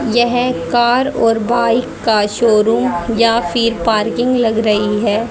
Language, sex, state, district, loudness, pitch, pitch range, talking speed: Hindi, female, Haryana, Rohtak, -14 LUFS, 230 Hz, 215-240 Hz, 135 wpm